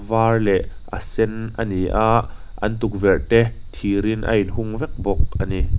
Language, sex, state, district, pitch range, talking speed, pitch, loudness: Mizo, male, Mizoram, Aizawl, 100-115 Hz, 175 wpm, 110 Hz, -21 LUFS